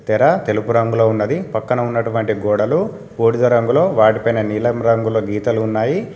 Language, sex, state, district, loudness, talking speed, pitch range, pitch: Telugu, male, Telangana, Komaram Bheem, -17 LUFS, 135 wpm, 110-120 Hz, 115 Hz